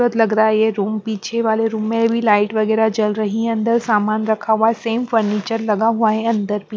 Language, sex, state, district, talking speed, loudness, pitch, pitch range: Hindi, female, Punjab, Pathankot, 255 wpm, -17 LUFS, 220 Hz, 215-225 Hz